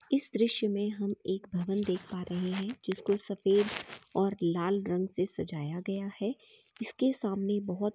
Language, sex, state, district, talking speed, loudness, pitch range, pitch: Hindi, female, Chhattisgarh, Bastar, 165 wpm, -32 LUFS, 185-210 Hz, 200 Hz